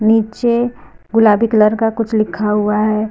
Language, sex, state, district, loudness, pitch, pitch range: Hindi, female, Uttar Pradesh, Lucknow, -15 LUFS, 220 Hz, 215-225 Hz